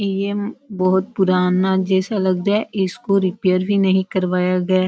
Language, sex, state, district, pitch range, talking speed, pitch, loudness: Hindi, female, Bihar, Jahanabad, 185-200 Hz, 160 wpm, 190 Hz, -18 LUFS